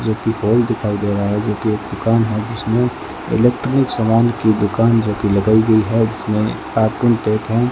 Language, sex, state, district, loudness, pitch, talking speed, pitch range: Hindi, male, Rajasthan, Bikaner, -16 LUFS, 110 Hz, 165 wpm, 105-115 Hz